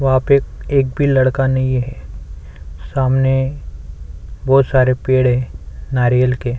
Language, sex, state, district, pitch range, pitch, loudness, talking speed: Hindi, male, Chhattisgarh, Sukma, 80-135 Hz, 130 Hz, -16 LUFS, 135 wpm